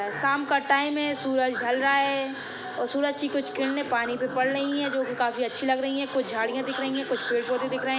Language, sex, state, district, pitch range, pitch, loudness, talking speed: Hindi, female, Chhattisgarh, Sukma, 255-275 Hz, 265 Hz, -26 LUFS, 270 wpm